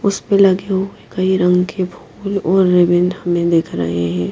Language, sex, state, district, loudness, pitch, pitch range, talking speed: Hindi, female, Himachal Pradesh, Shimla, -16 LUFS, 185 Hz, 175-190 Hz, 180 wpm